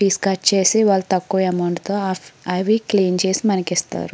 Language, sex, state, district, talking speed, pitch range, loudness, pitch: Telugu, female, Andhra Pradesh, Srikakulam, 175 wpm, 185-200 Hz, -18 LUFS, 190 Hz